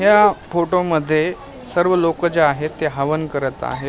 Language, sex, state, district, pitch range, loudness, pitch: Marathi, male, Maharashtra, Mumbai Suburban, 155-175 Hz, -18 LUFS, 165 Hz